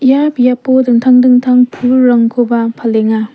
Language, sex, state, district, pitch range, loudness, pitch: Garo, female, Meghalaya, West Garo Hills, 235-255 Hz, -10 LUFS, 250 Hz